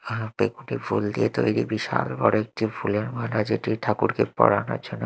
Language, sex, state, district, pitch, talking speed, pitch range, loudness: Bengali, male, Odisha, Malkangiri, 110 Hz, 165 wpm, 105-115 Hz, -24 LUFS